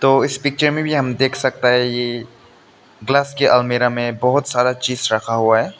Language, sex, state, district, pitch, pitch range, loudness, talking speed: Hindi, male, Meghalaya, West Garo Hills, 125 Hz, 120-135 Hz, -17 LUFS, 195 wpm